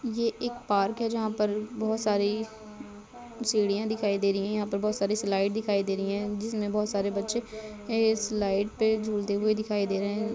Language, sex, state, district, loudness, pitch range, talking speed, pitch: Hindi, female, Uttar Pradesh, Budaun, -28 LUFS, 205-220 Hz, 195 wpm, 210 Hz